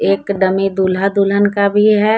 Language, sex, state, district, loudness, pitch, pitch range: Hindi, female, Jharkhand, Deoghar, -14 LUFS, 200 Hz, 195-205 Hz